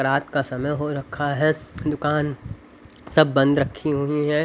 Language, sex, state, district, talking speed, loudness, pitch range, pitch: Hindi, male, Haryana, Rohtak, 160 wpm, -22 LUFS, 140-150 Hz, 145 Hz